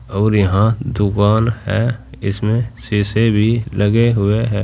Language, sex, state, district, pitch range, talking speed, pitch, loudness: Hindi, male, Uttar Pradesh, Saharanpur, 105-115 Hz, 130 wpm, 110 Hz, -16 LUFS